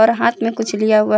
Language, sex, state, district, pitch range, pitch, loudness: Hindi, female, Jharkhand, Palamu, 215-225 Hz, 220 Hz, -17 LUFS